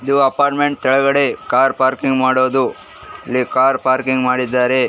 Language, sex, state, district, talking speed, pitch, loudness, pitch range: Kannada, male, Karnataka, Raichur, 135 wpm, 130 Hz, -15 LUFS, 130-135 Hz